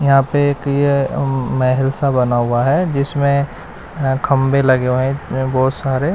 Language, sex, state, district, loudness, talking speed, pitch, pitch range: Hindi, male, Bihar, West Champaran, -16 LUFS, 185 wpm, 135 Hz, 130-140 Hz